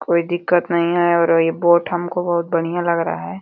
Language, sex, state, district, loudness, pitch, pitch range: Hindi, female, Uttar Pradesh, Deoria, -18 LUFS, 170 Hz, 170-175 Hz